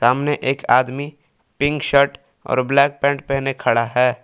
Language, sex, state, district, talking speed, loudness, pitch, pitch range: Hindi, male, Jharkhand, Palamu, 155 wpm, -18 LUFS, 140 Hz, 130-140 Hz